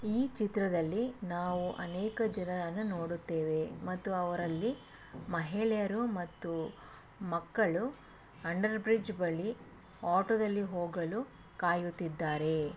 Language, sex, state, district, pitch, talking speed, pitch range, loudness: Kannada, female, Karnataka, Bellary, 180 Hz, 80 wpm, 170-215 Hz, -35 LUFS